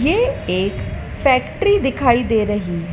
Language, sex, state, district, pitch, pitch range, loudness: Hindi, female, Madhya Pradesh, Dhar, 245 Hz, 205-295 Hz, -18 LUFS